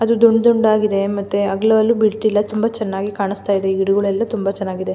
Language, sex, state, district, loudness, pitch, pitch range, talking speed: Kannada, female, Karnataka, Mysore, -17 LUFS, 205 Hz, 195-220 Hz, 170 wpm